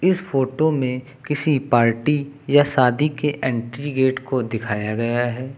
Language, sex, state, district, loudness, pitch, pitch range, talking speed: Hindi, male, Uttar Pradesh, Lucknow, -20 LUFS, 130 Hz, 120-145 Hz, 150 wpm